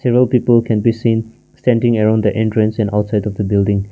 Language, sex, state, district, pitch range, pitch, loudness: English, male, Nagaland, Kohima, 105-120 Hz, 110 Hz, -15 LUFS